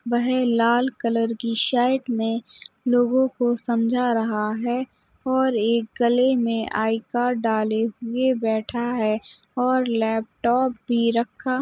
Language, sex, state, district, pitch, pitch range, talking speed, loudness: Hindi, female, Uttar Pradesh, Hamirpur, 235 Hz, 225-250 Hz, 135 wpm, -22 LUFS